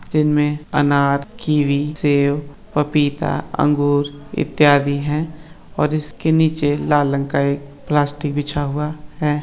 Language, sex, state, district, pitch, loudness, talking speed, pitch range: Hindi, male, Maharashtra, Solapur, 145 Hz, -18 LUFS, 125 wpm, 145-150 Hz